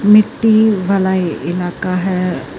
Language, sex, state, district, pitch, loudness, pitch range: Punjabi, female, Karnataka, Bangalore, 190 Hz, -15 LUFS, 180-210 Hz